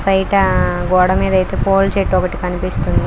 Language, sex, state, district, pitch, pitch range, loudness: Telugu, female, Andhra Pradesh, Krishna, 190 Hz, 180-195 Hz, -15 LUFS